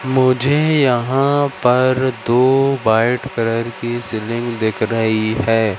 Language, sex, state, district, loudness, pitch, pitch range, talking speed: Hindi, male, Madhya Pradesh, Katni, -16 LUFS, 120 Hz, 115-130 Hz, 115 wpm